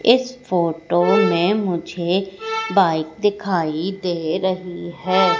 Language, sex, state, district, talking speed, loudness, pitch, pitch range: Hindi, female, Madhya Pradesh, Katni, 100 wpm, -20 LUFS, 180 Hz, 170-205 Hz